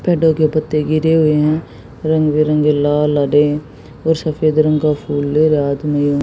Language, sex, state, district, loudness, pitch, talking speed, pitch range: Hindi, female, Haryana, Jhajjar, -15 LUFS, 150 Hz, 175 wpm, 145-155 Hz